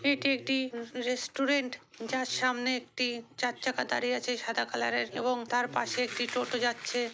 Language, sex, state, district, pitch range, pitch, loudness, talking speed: Bengali, female, West Bengal, North 24 Parganas, 240-255 Hz, 245 Hz, -31 LUFS, 150 wpm